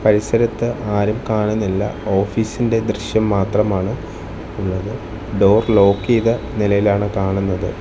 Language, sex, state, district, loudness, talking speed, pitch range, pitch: Malayalam, male, Kerala, Thiruvananthapuram, -18 LUFS, 90 wpm, 100-110 Hz, 105 Hz